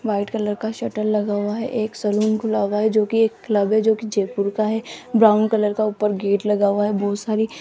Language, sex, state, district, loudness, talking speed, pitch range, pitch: Hindi, female, Rajasthan, Jaipur, -20 LUFS, 260 wpm, 205-220 Hz, 215 Hz